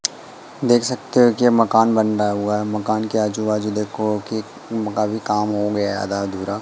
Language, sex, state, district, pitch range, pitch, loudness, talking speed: Hindi, male, Madhya Pradesh, Katni, 105-110 Hz, 105 Hz, -20 LUFS, 200 wpm